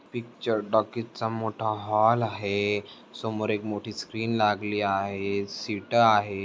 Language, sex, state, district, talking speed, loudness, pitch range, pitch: Marathi, male, Maharashtra, Dhule, 130 wpm, -27 LUFS, 105-115 Hz, 110 Hz